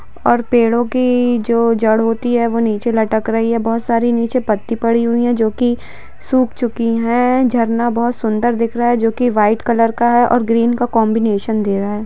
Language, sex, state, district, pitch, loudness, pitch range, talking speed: Hindi, female, Jharkhand, Jamtara, 230 Hz, -15 LUFS, 225-240 Hz, 215 wpm